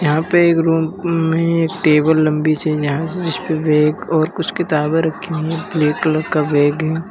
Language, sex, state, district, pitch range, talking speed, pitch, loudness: Hindi, male, Uttar Pradesh, Lalitpur, 155-165 Hz, 175 wpm, 160 Hz, -16 LUFS